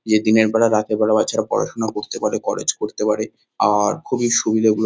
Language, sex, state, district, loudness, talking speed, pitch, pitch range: Bengali, male, West Bengal, North 24 Parganas, -19 LUFS, 195 wpm, 110 Hz, 105-110 Hz